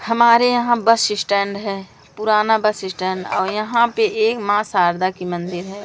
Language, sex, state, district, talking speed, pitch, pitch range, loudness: Hindi, female, Madhya Pradesh, Umaria, 175 wpm, 210 Hz, 190-230 Hz, -18 LUFS